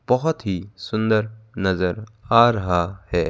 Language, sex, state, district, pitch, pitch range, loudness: Hindi, male, Madhya Pradesh, Bhopal, 105 Hz, 95-110 Hz, -21 LUFS